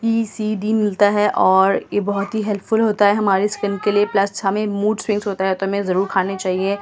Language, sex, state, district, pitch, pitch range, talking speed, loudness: Hindi, female, Delhi, New Delhi, 205 Hz, 195-210 Hz, 230 wpm, -18 LUFS